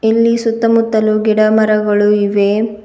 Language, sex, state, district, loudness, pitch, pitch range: Kannada, female, Karnataka, Bidar, -13 LUFS, 215 Hz, 210-225 Hz